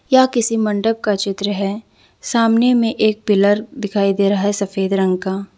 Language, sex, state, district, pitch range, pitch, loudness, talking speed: Hindi, female, Jharkhand, Deoghar, 200-225 Hz, 205 Hz, -17 LUFS, 185 wpm